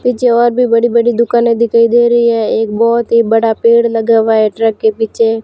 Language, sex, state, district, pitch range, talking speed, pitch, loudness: Hindi, female, Rajasthan, Barmer, 225-235 Hz, 240 wpm, 230 Hz, -11 LUFS